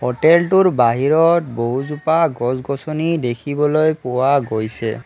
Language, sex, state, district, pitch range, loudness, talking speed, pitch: Assamese, male, Assam, Kamrup Metropolitan, 125-160 Hz, -17 LUFS, 85 wpm, 140 Hz